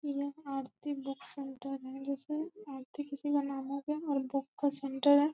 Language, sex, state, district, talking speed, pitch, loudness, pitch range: Hindi, female, Bihar, Gopalganj, 190 wpm, 280 Hz, -36 LUFS, 275-290 Hz